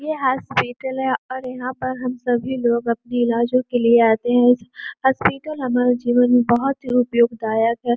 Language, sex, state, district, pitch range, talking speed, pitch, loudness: Hindi, female, Uttar Pradesh, Gorakhpur, 235-255 Hz, 165 wpm, 245 Hz, -19 LUFS